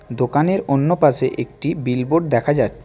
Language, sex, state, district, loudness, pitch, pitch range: Bengali, male, West Bengal, Alipurduar, -18 LUFS, 140 Hz, 125-155 Hz